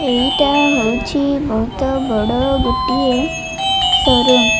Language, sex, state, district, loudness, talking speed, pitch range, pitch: Odia, female, Odisha, Malkangiri, -15 LUFS, 105 wpm, 235-285 Hz, 260 Hz